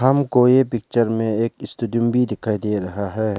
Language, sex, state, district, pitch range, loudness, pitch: Hindi, male, Arunachal Pradesh, Lower Dibang Valley, 105-125 Hz, -20 LUFS, 115 Hz